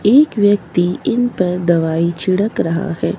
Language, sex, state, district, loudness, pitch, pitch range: Hindi, female, Himachal Pradesh, Shimla, -16 LUFS, 180 Hz, 170-210 Hz